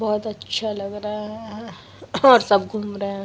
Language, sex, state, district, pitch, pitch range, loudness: Hindi, female, Bihar, Vaishali, 210 Hz, 200-215 Hz, -21 LUFS